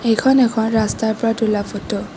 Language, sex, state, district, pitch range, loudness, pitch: Assamese, female, Assam, Kamrup Metropolitan, 220-230 Hz, -18 LUFS, 225 Hz